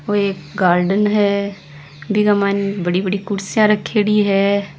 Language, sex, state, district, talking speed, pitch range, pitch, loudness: Hindi, female, Rajasthan, Nagaur, 150 wpm, 185-205 Hz, 200 Hz, -17 LUFS